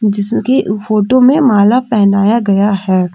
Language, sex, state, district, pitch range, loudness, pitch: Hindi, female, Jharkhand, Deoghar, 200-240 Hz, -11 LUFS, 210 Hz